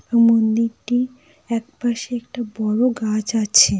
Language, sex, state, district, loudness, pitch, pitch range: Bengali, female, West Bengal, Jalpaiguri, -20 LUFS, 230 Hz, 220-245 Hz